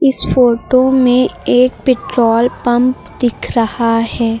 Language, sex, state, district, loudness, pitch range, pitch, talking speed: Hindi, female, Uttar Pradesh, Lucknow, -13 LUFS, 235-255 Hz, 245 Hz, 120 wpm